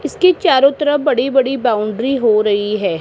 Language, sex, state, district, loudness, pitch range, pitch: Hindi, female, Rajasthan, Jaipur, -14 LUFS, 215-285 Hz, 260 Hz